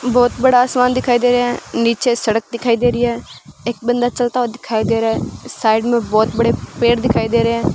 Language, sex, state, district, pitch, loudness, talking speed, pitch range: Hindi, female, Rajasthan, Bikaner, 240 Hz, -16 LUFS, 230 wpm, 230-245 Hz